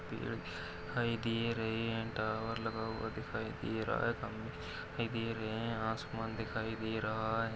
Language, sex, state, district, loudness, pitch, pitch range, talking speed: Hindi, male, Maharashtra, Nagpur, -38 LUFS, 110 Hz, 110-115 Hz, 165 wpm